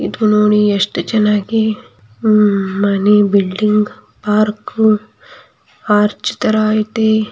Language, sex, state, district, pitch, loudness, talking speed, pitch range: Kannada, female, Karnataka, Mysore, 210 Hz, -14 LUFS, 100 wpm, 205-215 Hz